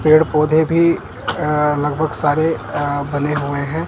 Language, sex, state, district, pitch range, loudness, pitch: Hindi, male, Punjab, Kapurthala, 145-160 Hz, -17 LUFS, 150 Hz